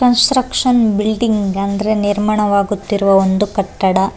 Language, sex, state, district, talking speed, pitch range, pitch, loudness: Kannada, female, Karnataka, Raichur, 100 wpm, 200-220 Hz, 205 Hz, -15 LUFS